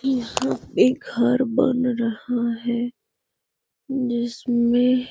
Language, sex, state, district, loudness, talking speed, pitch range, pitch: Hindi, female, Bihar, Gaya, -22 LUFS, 95 wpm, 240-260 Hz, 245 Hz